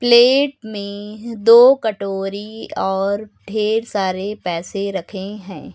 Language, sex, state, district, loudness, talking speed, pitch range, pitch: Hindi, male, Uttar Pradesh, Lucknow, -18 LUFS, 105 wpm, 195-225 Hz, 210 Hz